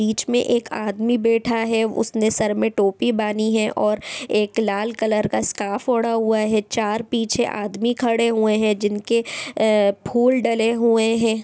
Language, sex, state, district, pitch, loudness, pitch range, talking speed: Hindi, female, Bihar, East Champaran, 220 Hz, -20 LUFS, 210-230 Hz, 155 wpm